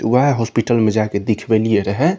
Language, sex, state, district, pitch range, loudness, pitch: Maithili, male, Bihar, Saharsa, 110-120 Hz, -17 LUFS, 115 Hz